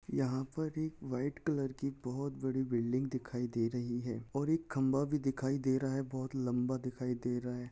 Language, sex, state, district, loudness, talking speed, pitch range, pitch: Hindi, male, Maharashtra, Solapur, -36 LUFS, 200 wpm, 125-135 Hz, 130 Hz